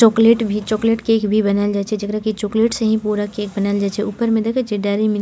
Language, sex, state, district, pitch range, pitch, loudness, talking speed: Maithili, female, Bihar, Purnia, 205-225 Hz, 215 Hz, -18 LUFS, 285 wpm